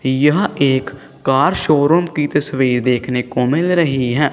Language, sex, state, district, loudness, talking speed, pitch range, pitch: Hindi, male, Punjab, Kapurthala, -16 LUFS, 150 wpm, 130-150 Hz, 140 Hz